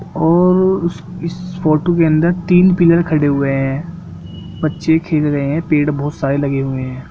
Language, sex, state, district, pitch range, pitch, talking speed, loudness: Hindi, male, Jharkhand, Jamtara, 140-170 Hz, 155 Hz, 170 wpm, -15 LUFS